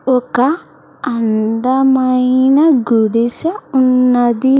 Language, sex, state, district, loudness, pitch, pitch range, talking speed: Telugu, female, Andhra Pradesh, Sri Satya Sai, -13 LUFS, 255 Hz, 240-270 Hz, 50 wpm